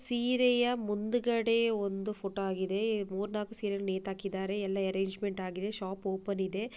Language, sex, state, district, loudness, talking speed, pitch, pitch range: Kannada, female, Karnataka, Bijapur, -33 LUFS, 140 wpm, 200 Hz, 195-220 Hz